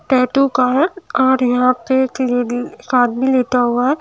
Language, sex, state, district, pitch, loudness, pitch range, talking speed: Hindi, female, Himachal Pradesh, Shimla, 255 Hz, -16 LUFS, 250-265 Hz, 150 wpm